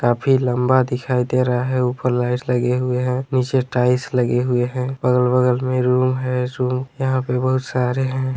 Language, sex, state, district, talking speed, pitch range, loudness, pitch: Hindi, male, Chhattisgarh, Raigarh, 195 wpm, 125-130 Hz, -19 LUFS, 125 Hz